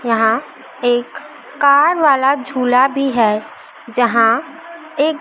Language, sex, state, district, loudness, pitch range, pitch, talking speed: Hindi, female, Madhya Pradesh, Dhar, -15 LUFS, 235-290 Hz, 265 Hz, 105 wpm